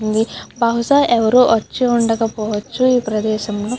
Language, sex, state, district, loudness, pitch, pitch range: Telugu, female, Andhra Pradesh, Guntur, -16 LUFS, 225 Hz, 215-245 Hz